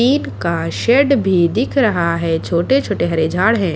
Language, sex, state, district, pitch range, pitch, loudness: Hindi, female, Haryana, Charkhi Dadri, 170-255 Hz, 195 Hz, -16 LUFS